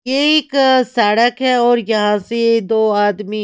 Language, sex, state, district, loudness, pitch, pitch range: Hindi, female, Maharashtra, Mumbai Suburban, -14 LUFS, 230 Hz, 210-255 Hz